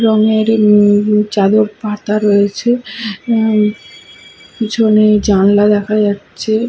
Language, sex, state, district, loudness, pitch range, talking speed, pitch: Bengali, female, Bihar, Katihar, -12 LUFS, 205-220 Hz, 90 wpm, 210 Hz